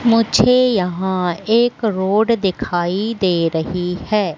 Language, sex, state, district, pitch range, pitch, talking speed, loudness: Hindi, female, Madhya Pradesh, Katni, 180-230 Hz, 195 Hz, 110 wpm, -17 LUFS